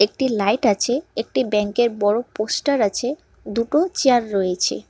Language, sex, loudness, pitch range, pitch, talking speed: Bengali, male, -20 LUFS, 205-265 Hz, 230 Hz, 135 wpm